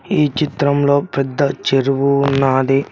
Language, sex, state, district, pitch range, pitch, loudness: Telugu, male, Telangana, Mahabubabad, 135-140 Hz, 140 Hz, -16 LUFS